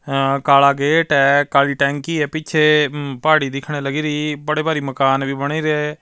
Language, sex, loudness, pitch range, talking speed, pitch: Punjabi, male, -17 LUFS, 140-155 Hz, 180 wpm, 145 Hz